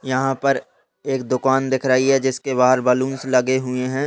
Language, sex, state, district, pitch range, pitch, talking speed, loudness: Hindi, male, Chhattisgarh, Rajnandgaon, 130-135 Hz, 130 Hz, 190 wpm, -19 LUFS